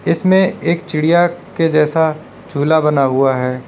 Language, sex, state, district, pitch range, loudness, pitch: Hindi, male, Uttar Pradesh, Lalitpur, 145-170 Hz, -14 LUFS, 160 Hz